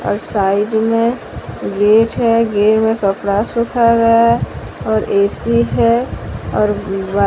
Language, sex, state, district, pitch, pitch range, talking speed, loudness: Hindi, female, Odisha, Sambalpur, 210 Hz, 195-230 Hz, 125 wpm, -15 LUFS